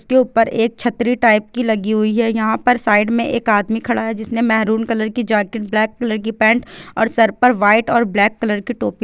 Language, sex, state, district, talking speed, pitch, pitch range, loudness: Hindi, female, Chhattisgarh, Bilaspur, 225 wpm, 225 Hz, 220-235 Hz, -16 LUFS